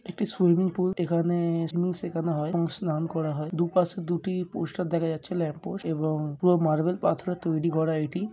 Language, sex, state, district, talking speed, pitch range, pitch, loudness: Bengali, male, West Bengal, Jhargram, 175 wpm, 160-180 Hz, 170 Hz, -27 LUFS